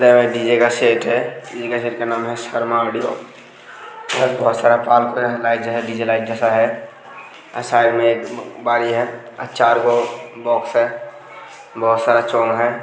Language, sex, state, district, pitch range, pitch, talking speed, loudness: Hindi, male, Uttar Pradesh, Hamirpur, 115-120 Hz, 120 Hz, 180 wpm, -17 LUFS